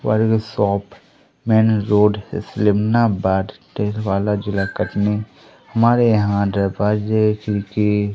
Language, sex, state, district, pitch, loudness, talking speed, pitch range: Hindi, male, Madhya Pradesh, Umaria, 105 Hz, -18 LUFS, 95 wpm, 100-110 Hz